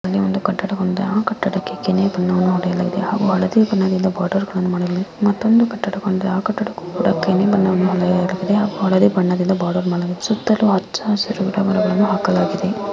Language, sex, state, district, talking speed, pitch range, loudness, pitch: Kannada, female, Karnataka, Mysore, 175 wpm, 185-205 Hz, -18 LUFS, 190 Hz